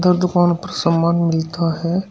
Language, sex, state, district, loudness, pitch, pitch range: Hindi, male, Uttar Pradesh, Shamli, -18 LUFS, 170 Hz, 165-180 Hz